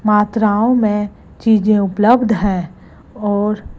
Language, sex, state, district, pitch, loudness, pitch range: Hindi, female, Gujarat, Gandhinagar, 210 Hz, -15 LUFS, 205-220 Hz